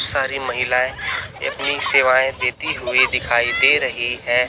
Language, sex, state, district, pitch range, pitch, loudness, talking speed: Hindi, male, Chhattisgarh, Raipur, 125-130 Hz, 125 Hz, -17 LUFS, 135 wpm